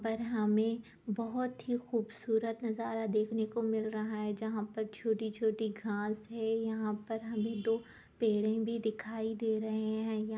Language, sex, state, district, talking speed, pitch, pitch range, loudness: Hindi, female, Jharkhand, Sahebganj, 150 wpm, 220 Hz, 215-225 Hz, -35 LUFS